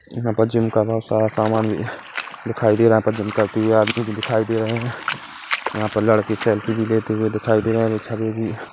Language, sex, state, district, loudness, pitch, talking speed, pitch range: Hindi, female, Chhattisgarh, Kabirdham, -20 LUFS, 110 Hz, 245 wpm, 110-115 Hz